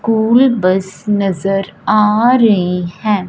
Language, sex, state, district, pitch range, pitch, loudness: Hindi, female, Punjab, Fazilka, 185-220 Hz, 205 Hz, -13 LUFS